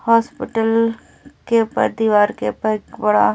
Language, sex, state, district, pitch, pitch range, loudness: Hindi, female, Delhi, New Delhi, 225 Hz, 210-230 Hz, -18 LUFS